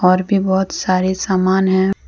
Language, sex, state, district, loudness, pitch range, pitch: Hindi, female, Jharkhand, Deoghar, -16 LUFS, 185-190 Hz, 190 Hz